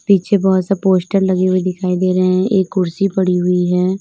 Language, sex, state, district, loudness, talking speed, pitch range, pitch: Hindi, female, Uttar Pradesh, Lalitpur, -15 LUFS, 225 wpm, 185-195 Hz, 185 Hz